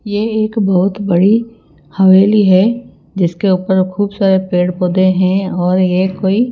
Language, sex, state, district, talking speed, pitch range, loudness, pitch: Hindi, female, Himachal Pradesh, Shimla, 140 wpm, 185-205 Hz, -13 LUFS, 190 Hz